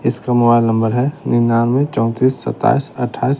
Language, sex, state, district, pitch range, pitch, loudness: Hindi, male, Bihar, West Champaran, 115-135 Hz, 120 Hz, -16 LUFS